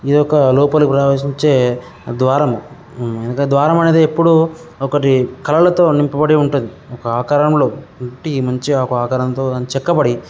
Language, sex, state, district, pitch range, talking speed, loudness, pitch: Telugu, male, Telangana, Karimnagar, 125-150 Hz, 140 wpm, -14 LUFS, 140 Hz